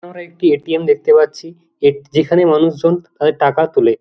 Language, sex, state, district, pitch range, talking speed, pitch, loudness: Bengali, male, West Bengal, Jhargram, 155-175 Hz, 165 wpm, 165 Hz, -14 LUFS